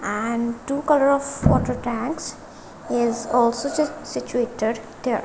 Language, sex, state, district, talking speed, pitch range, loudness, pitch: English, female, Punjab, Kapurthala, 125 wpm, 235-280 Hz, -23 LUFS, 240 Hz